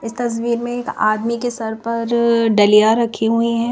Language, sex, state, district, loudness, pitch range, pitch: Hindi, female, Himachal Pradesh, Shimla, -17 LUFS, 220-235 Hz, 230 Hz